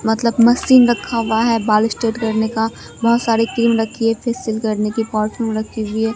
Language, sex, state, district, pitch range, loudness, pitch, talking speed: Hindi, female, Bihar, Katihar, 220-235 Hz, -17 LUFS, 225 Hz, 205 wpm